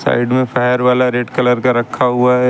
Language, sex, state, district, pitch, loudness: Hindi, male, Uttar Pradesh, Lucknow, 125 Hz, -14 LUFS